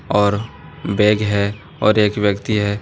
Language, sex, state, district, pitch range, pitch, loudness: Hindi, male, Jharkhand, Deoghar, 100-105 Hz, 105 Hz, -18 LUFS